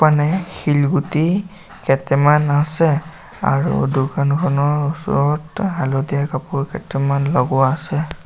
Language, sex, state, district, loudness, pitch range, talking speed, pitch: Assamese, male, Assam, Sonitpur, -18 LUFS, 140-165 Hz, 80 wpm, 150 Hz